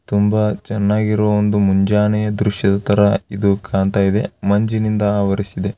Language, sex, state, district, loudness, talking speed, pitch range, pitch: Kannada, male, Karnataka, Raichur, -17 LUFS, 105 wpm, 100-105 Hz, 105 Hz